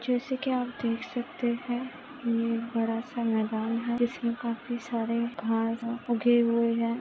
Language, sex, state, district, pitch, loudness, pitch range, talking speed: Hindi, female, Maharashtra, Pune, 235 Hz, -29 LUFS, 230-240 Hz, 155 wpm